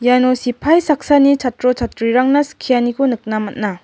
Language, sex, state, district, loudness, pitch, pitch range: Garo, female, Meghalaya, West Garo Hills, -15 LUFS, 250 Hz, 240-280 Hz